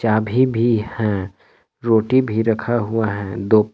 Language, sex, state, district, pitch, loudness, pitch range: Hindi, male, Jharkhand, Palamu, 110 Hz, -19 LUFS, 105-115 Hz